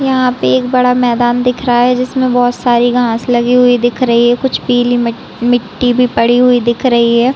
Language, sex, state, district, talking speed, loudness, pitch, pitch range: Hindi, female, Chhattisgarh, Raigarh, 220 wpm, -11 LUFS, 245 Hz, 240-250 Hz